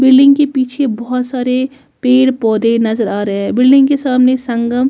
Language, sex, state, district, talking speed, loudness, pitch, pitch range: Hindi, female, Delhi, New Delhi, 195 wpm, -13 LUFS, 255 Hz, 230-265 Hz